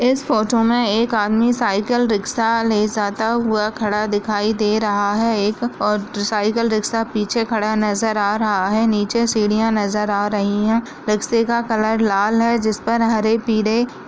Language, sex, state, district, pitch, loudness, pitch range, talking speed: Hindi, female, Chhattisgarh, Balrampur, 220 Hz, -18 LUFS, 210-230 Hz, 170 wpm